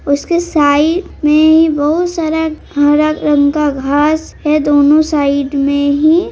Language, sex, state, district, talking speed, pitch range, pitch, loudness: Hindi, male, Bihar, Araria, 140 wpm, 285-315 Hz, 300 Hz, -12 LUFS